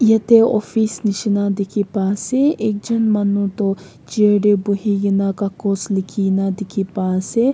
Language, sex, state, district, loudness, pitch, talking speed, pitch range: Nagamese, female, Nagaland, Kohima, -18 LUFS, 205 Hz, 150 wpm, 195-220 Hz